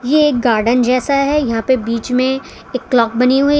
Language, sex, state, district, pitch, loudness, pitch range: Hindi, female, Gujarat, Valsad, 255 Hz, -15 LUFS, 240-275 Hz